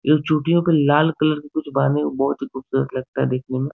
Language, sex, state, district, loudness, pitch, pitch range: Hindi, male, Bihar, Supaul, -20 LUFS, 145 Hz, 135-155 Hz